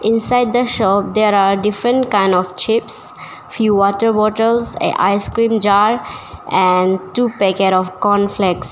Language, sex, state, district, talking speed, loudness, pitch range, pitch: English, female, Arunachal Pradesh, Papum Pare, 140 wpm, -15 LUFS, 195-225 Hz, 205 Hz